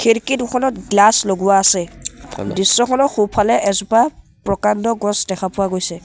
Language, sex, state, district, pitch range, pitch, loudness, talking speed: Assamese, male, Assam, Sonitpur, 195-230 Hz, 205 Hz, -16 LUFS, 130 wpm